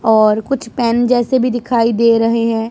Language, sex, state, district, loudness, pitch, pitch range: Hindi, female, Punjab, Pathankot, -14 LUFS, 230 Hz, 225-245 Hz